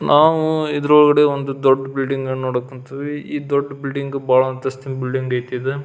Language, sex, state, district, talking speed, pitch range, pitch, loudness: Kannada, male, Karnataka, Belgaum, 175 wpm, 130-145 Hz, 135 Hz, -18 LUFS